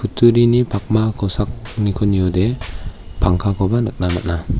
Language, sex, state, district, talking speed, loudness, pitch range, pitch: Garo, male, Meghalaya, West Garo Hills, 80 wpm, -18 LUFS, 90-115 Hz, 100 Hz